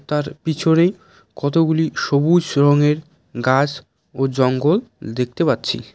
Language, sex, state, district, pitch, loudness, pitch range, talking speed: Bengali, male, West Bengal, Cooch Behar, 150 Hz, -18 LUFS, 140-160 Hz, 100 wpm